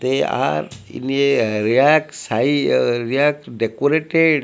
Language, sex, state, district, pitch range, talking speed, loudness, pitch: English, male, Odisha, Malkangiri, 115-150 Hz, 70 wpm, -18 LUFS, 135 Hz